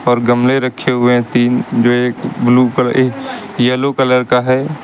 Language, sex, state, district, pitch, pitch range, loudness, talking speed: Hindi, male, Uttar Pradesh, Lucknow, 125 Hz, 120-130 Hz, -13 LUFS, 185 wpm